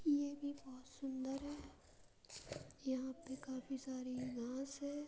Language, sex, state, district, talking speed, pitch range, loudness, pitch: Hindi, female, Uttar Pradesh, Budaun, 130 wpm, 260-285 Hz, -46 LUFS, 265 Hz